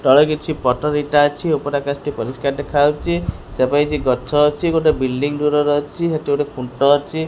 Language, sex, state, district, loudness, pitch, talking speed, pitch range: Odia, female, Odisha, Khordha, -18 LUFS, 145 Hz, 175 wpm, 135-150 Hz